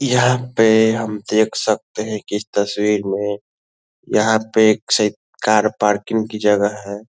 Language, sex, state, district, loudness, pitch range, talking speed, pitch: Hindi, male, Bihar, Lakhisarai, -18 LUFS, 105-110 Hz, 150 wpm, 110 Hz